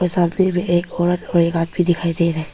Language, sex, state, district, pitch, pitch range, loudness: Hindi, female, Arunachal Pradesh, Papum Pare, 175 Hz, 170-180 Hz, -18 LUFS